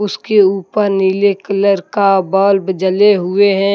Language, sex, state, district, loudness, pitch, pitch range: Hindi, male, Jharkhand, Deoghar, -13 LUFS, 195 Hz, 190-205 Hz